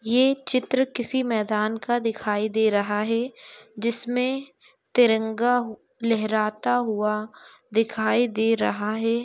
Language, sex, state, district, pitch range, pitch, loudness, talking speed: Hindi, female, Maharashtra, Chandrapur, 215-245 Hz, 225 Hz, -24 LUFS, 110 wpm